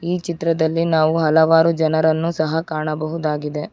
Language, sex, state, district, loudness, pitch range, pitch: Kannada, female, Karnataka, Bangalore, -18 LUFS, 155-165 Hz, 160 Hz